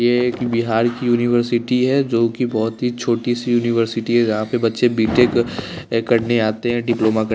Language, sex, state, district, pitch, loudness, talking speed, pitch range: Hindi, male, Bihar, West Champaran, 120 Hz, -18 LUFS, 205 wpm, 115-120 Hz